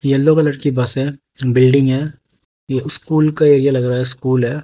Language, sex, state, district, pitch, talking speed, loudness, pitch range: Hindi, male, Haryana, Jhajjar, 135 Hz, 205 wpm, -15 LUFS, 130-150 Hz